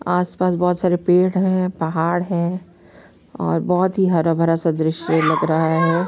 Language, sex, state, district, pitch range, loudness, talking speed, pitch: Hindi, female, Bihar, Saharsa, 165-180 Hz, -19 LUFS, 165 wpm, 175 Hz